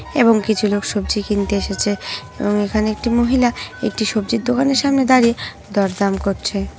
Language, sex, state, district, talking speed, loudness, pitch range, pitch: Bengali, female, West Bengal, North 24 Parganas, 160 wpm, -18 LUFS, 205-240 Hz, 215 Hz